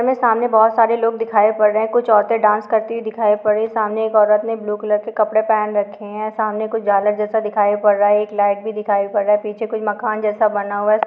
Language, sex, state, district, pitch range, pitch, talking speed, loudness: Hindi, female, Bihar, Muzaffarpur, 210-220 Hz, 215 Hz, 270 wpm, -17 LUFS